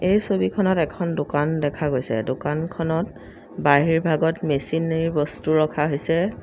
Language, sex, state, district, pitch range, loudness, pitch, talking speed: Assamese, female, Assam, Sonitpur, 145-165 Hz, -22 LUFS, 155 Hz, 110 wpm